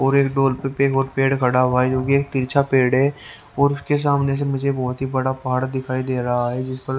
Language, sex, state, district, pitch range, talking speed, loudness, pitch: Hindi, male, Haryana, Rohtak, 130-140 Hz, 250 wpm, -20 LUFS, 135 Hz